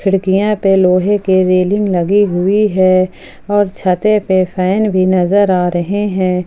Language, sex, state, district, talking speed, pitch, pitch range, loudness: Hindi, female, Jharkhand, Palamu, 160 wpm, 190 Hz, 185-205 Hz, -13 LUFS